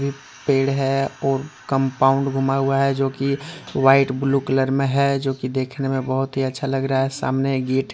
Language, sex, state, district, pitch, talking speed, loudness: Hindi, male, Jharkhand, Deoghar, 135 Hz, 205 wpm, -21 LUFS